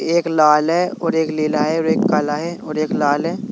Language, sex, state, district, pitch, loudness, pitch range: Hindi, male, Uttar Pradesh, Saharanpur, 160 Hz, -18 LUFS, 150-170 Hz